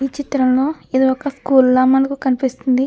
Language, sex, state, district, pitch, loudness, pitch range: Telugu, female, Andhra Pradesh, Krishna, 265 Hz, -16 LUFS, 255-275 Hz